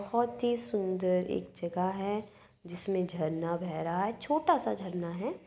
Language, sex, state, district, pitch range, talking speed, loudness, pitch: Hindi, female, Uttar Pradesh, Budaun, 175-220 Hz, 165 wpm, -33 LUFS, 185 Hz